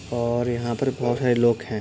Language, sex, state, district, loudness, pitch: Hindi, male, Uttar Pradesh, Budaun, -23 LUFS, 120 Hz